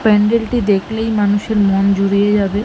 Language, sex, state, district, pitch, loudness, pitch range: Bengali, female, West Bengal, Malda, 205 Hz, -15 LUFS, 200-220 Hz